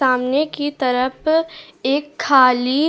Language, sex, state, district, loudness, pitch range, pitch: Hindi, female, Goa, North and South Goa, -18 LUFS, 255-310 Hz, 280 Hz